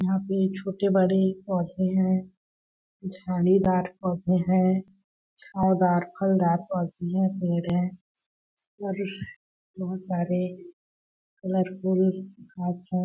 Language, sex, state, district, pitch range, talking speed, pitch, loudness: Hindi, female, Chhattisgarh, Balrampur, 180-190 Hz, 85 wpm, 185 Hz, -26 LUFS